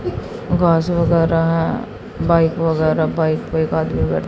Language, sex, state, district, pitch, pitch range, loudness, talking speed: Hindi, female, Haryana, Jhajjar, 165 Hz, 160-170 Hz, -17 LUFS, 140 wpm